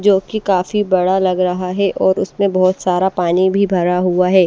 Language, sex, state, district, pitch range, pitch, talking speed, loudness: Hindi, female, Odisha, Malkangiri, 180-195 Hz, 185 Hz, 215 wpm, -15 LUFS